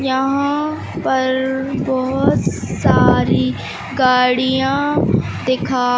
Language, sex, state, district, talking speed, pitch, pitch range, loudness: Hindi, male, Madhya Pradesh, Katni, 60 wpm, 260 Hz, 255-270 Hz, -17 LUFS